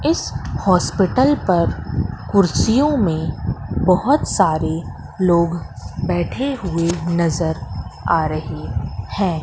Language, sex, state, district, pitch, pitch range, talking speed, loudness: Hindi, female, Madhya Pradesh, Katni, 170 Hz, 160-215 Hz, 90 wpm, -19 LUFS